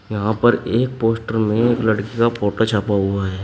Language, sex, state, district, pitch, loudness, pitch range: Hindi, male, Uttar Pradesh, Shamli, 110 Hz, -18 LUFS, 105-115 Hz